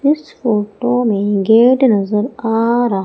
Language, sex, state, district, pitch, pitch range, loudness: Hindi, female, Madhya Pradesh, Umaria, 225 Hz, 210-245 Hz, -14 LUFS